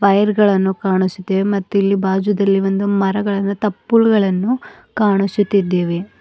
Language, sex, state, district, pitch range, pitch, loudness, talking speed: Kannada, female, Karnataka, Bidar, 190-205 Hz, 200 Hz, -16 LUFS, 95 wpm